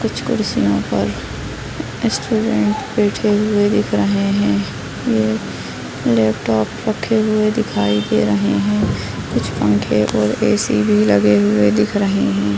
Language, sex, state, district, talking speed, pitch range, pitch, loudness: Hindi, female, Bihar, Bhagalpur, 130 wpm, 100-120 Hz, 105 Hz, -17 LUFS